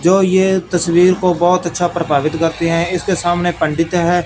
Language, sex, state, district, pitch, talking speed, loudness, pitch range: Hindi, male, Punjab, Fazilka, 175 Hz, 185 wpm, -15 LUFS, 170-180 Hz